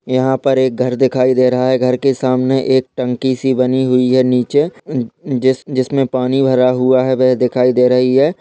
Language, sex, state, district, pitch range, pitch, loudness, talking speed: Hindi, male, Maharashtra, Aurangabad, 125-130 Hz, 130 Hz, -14 LUFS, 205 wpm